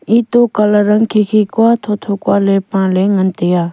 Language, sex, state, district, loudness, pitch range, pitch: Wancho, female, Arunachal Pradesh, Longding, -13 LUFS, 195-215 Hz, 205 Hz